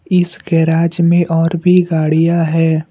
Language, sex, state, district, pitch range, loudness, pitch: Hindi, male, Assam, Kamrup Metropolitan, 165-175 Hz, -13 LUFS, 165 Hz